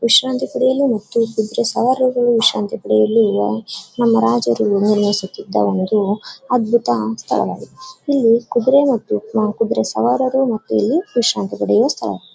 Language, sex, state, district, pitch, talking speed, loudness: Kannada, female, Karnataka, Bellary, 225 Hz, 110 wpm, -17 LUFS